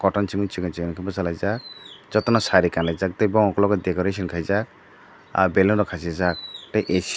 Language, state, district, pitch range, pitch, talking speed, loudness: Kokborok, Tripura, Dhalai, 90-100 Hz, 95 Hz, 160 wpm, -22 LUFS